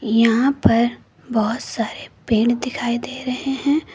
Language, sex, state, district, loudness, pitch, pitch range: Hindi, female, Uttar Pradesh, Lucknow, -20 LUFS, 240 Hz, 230-265 Hz